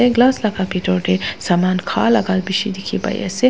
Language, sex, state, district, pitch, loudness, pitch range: Nagamese, female, Nagaland, Dimapur, 190 Hz, -18 LUFS, 185-230 Hz